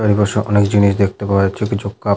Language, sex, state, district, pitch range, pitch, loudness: Bengali, male, West Bengal, Paschim Medinipur, 100-105 Hz, 100 Hz, -16 LUFS